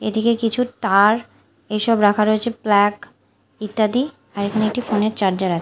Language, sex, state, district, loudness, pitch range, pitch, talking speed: Bengali, female, Odisha, Malkangiri, -19 LUFS, 205-230 Hz, 215 Hz, 160 wpm